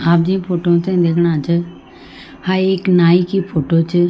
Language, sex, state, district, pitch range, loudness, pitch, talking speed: Garhwali, female, Uttarakhand, Tehri Garhwal, 170-185 Hz, -15 LUFS, 175 Hz, 175 wpm